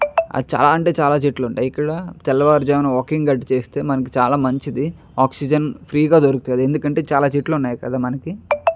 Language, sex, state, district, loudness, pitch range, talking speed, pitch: Telugu, male, Andhra Pradesh, Chittoor, -18 LUFS, 130-155 Hz, 155 wpm, 145 Hz